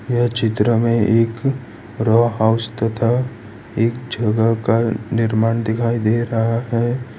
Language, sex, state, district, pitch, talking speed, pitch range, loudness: Hindi, male, Gujarat, Valsad, 115 Hz, 125 wpm, 110-120 Hz, -18 LUFS